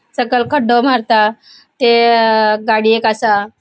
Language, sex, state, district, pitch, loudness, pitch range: Konkani, female, Goa, North and South Goa, 230 Hz, -13 LUFS, 220-245 Hz